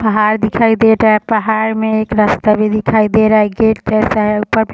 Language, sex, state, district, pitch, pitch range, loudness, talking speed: Hindi, female, Bihar, Sitamarhi, 220 Hz, 215-220 Hz, -12 LUFS, 255 wpm